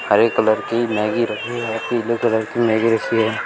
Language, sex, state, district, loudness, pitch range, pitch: Hindi, male, Uttar Pradesh, Shamli, -19 LUFS, 110-120 Hz, 115 Hz